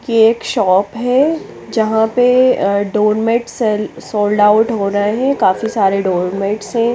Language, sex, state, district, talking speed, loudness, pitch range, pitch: Hindi, female, Chandigarh, Chandigarh, 155 wpm, -14 LUFS, 205-235 Hz, 220 Hz